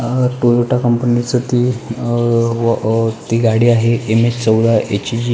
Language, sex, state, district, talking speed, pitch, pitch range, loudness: Marathi, male, Maharashtra, Pune, 190 wpm, 120 Hz, 115-120 Hz, -15 LUFS